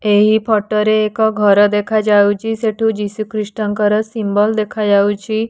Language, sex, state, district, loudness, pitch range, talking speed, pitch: Odia, female, Odisha, Nuapada, -15 LUFS, 205-220 Hz, 155 wpm, 215 Hz